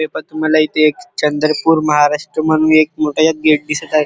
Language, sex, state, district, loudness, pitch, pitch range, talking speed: Marathi, male, Maharashtra, Chandrapur, -14 LUFS, 155 Hz, 150-155 Hz, 175 wpm